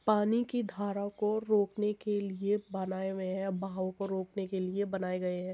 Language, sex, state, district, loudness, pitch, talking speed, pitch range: Hindi, female, Uttar Pradesh, Muzaffarnagar, -33 LUFS, 195 Hz, 195 wpm, 190-210 Hz